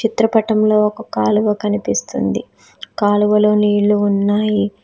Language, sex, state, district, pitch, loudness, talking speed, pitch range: Telugu, female, Telangana, Hyderabad, 210 Hz, -16 LUFS, 100 wpm, 205-215 Hz